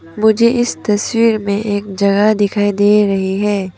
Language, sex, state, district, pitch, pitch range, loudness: Hindi, female, Arunachal Pradesh, Papum Pare, 205 Hz, 200-215 Hz, -14 LUFS